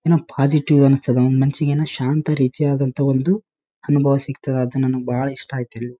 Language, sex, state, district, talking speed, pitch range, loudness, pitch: Kannada, male, Karnataka, Raichur, 230 wpm, 130-150 Hz, -19 LUFS, 140 Hz